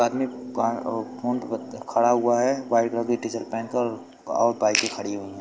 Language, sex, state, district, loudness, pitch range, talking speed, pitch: Hindi, male, Uttar Pradesh, Lucknow, -25 LUFS, 115-120 Hz, 165 wpm, 115 Hz